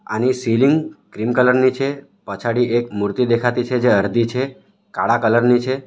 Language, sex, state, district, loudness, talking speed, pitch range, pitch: Gujarati, male, Gujarat, Valsad, -18 LUFS, 185 wpm, 115-130 Hz, 125 Hz